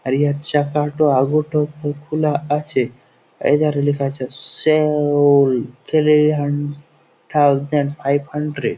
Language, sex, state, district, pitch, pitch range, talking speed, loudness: Bengali, male, West Bengal, Jhargram, 145 Hz, 140-150 Hz, 110 wpm, -18 LUFS